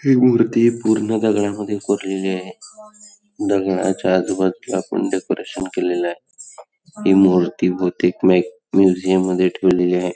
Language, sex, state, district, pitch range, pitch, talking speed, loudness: Marathi, male, Karnataka, Belgaum, 90-110 Hz, 95 Hz, 120 wpm, -18 LUFS